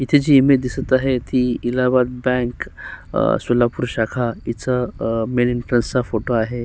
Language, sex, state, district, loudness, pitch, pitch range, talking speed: Marathi, male, Maharashtra, Solapur, -19 LUFS, 125 Hz, 120-130 Hz, 160 wpm